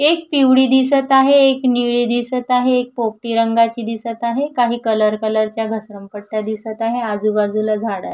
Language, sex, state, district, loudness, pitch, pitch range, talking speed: Marathi, female, Maharashtra, Nagpur, -17 LUFS, 235 Hz, 220-255 Hz, 170 wpm